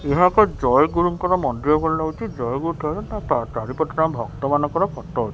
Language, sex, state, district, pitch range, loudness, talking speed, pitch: Odia, male, Odisha, Khordha, 140-175 Hz, -21 LUFS, 170 wpm, 160 Hz